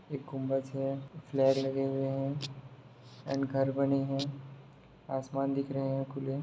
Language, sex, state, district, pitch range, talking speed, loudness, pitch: Hindi, male, Bihar, Sitamarhi, 135-140 Hz, 150 wpm, -33 LUFS, 135 Hz